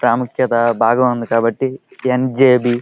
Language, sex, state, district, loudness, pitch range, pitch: Telugu, male, Andhra Pradesh, Krishna, -16 LUFS, 115-130 Hz, 120 Hz